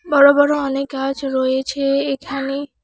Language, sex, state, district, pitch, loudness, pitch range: Bengali, female, West Bengal, Alipurduar, 275 Hz, -18 LUFS, 270-285 Hz